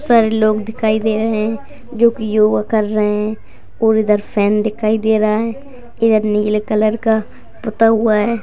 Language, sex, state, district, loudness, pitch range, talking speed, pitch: Hindi, female, Bihar, Gaya, -15 LUFS, 215-225 Hz, 190 wpm, 220 Hz